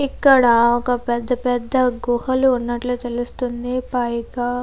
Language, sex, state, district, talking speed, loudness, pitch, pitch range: Telugu, female, Andhra Pradesh, Krishna, 115 wpm, -19 LUFS, 245 Hz, 240-255 Hz